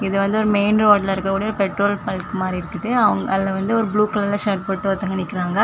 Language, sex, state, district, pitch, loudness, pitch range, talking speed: Tamil, female, Tamil Nadu, Kanyakumari, 200 Hz, -19 LUFS, 195-210 Hz, 225 wpm